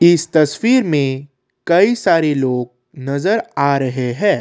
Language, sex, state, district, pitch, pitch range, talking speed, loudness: Hindi, male, Assam, Kamrup Metropolitan, 140 Hz, 130-170 Hz, 135 wpm, -16 LUFS